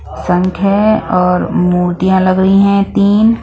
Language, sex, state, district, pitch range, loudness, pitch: Hindi, female, Bihar, West Champaran, 180-200 Hz, -11 LUFS, 190 Hz